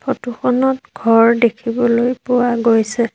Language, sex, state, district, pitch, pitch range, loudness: Assamese, female, Assam, Sonitpur, 235 Hz, 230-250 Hz, -15 LUFS